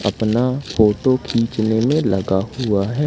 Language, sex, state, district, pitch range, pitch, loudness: Hindi, male, Madhya Pradesh, Katni, 105-125 Hz, 110 Hz, -18 LUFS